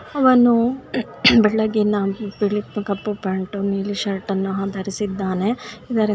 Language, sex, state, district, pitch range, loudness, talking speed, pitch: Kannada, female, Karnataka, Bijapur, 195-220 Hz, -20 LUFS, 90 wpm, 205 Hz